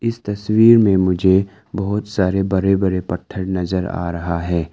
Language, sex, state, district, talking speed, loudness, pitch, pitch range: Hindi, male, Arunachal Pradesh, Lower Dibang Valley, 165 wpm, -18 LUFS, 95 Hz, 90-100 Hz